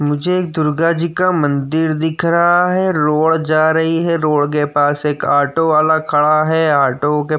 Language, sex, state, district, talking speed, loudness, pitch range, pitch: Hindi, male, Uttar Pradesh, Jyotiba Phule Nagar, 195 wpm, -15 LUFS, 150-165 Hz, 155 Hz